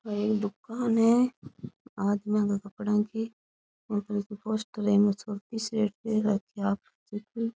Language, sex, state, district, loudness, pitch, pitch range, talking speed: Rajasthani, female, Rajasthan, Churu, -29 LUFS, 210 Hz, 205-225 Hz, 65 wpm